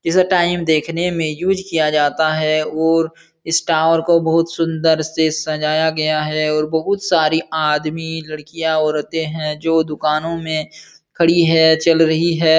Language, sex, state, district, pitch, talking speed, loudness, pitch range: Hindi, male, Uttar Pradesh, Jalaun, 160 Hz, 155 wpm, -17 LUFS, 155-165 Hz